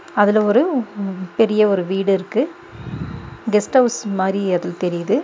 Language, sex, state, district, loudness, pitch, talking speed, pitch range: Tamil, female, Tamil Nadu, Nilgiris, -18 LUFS, 205 Hz, 125 wpm, 190-230 Hz